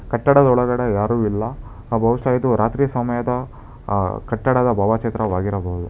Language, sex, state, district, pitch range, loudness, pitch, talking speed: Kannada, male, Karnataka, Bangalore, 105-125 Hz, -19 LUFS, 115 Hz, 100 wpm